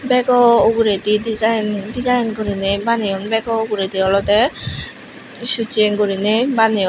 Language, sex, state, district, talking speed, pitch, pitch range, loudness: Chakma, female, Tripura, Unakoti, 105 wpm, 220 Hz, 205-230 Hz, -16 LUFS